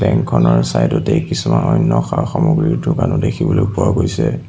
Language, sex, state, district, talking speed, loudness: Assamese, male, Assam, Sonitpur, 120 wpm, -15 LUFS